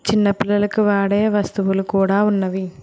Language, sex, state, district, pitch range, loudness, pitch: Telugu, female, Telangana, Hyderabad, 195-205 Hz, -18 LUFS, 200 Hz